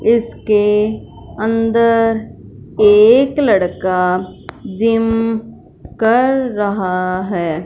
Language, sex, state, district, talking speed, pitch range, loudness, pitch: Hindi, female, Punjab, Fazilka, 65 wpm, 190-230 Hz, -14 LUFS, 220 Hz